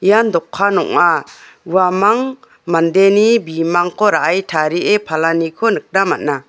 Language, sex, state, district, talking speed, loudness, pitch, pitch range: Garo, female, Meghalaya, West Garo Hills, 100 wpm, -14 LUFS, 185 Hz, 165-210 Hz